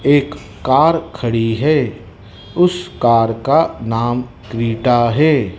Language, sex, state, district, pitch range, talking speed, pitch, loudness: Hindi, male, Madhya Pradesh, Dhar, 115-150 Hz, 105 wpm, 120 Hz, -15 LUFS